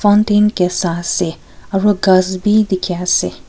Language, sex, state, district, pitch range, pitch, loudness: Nagamese, female, Nagaland, Kohima, 180-205 Hz, 190 Hz, -15 LUFS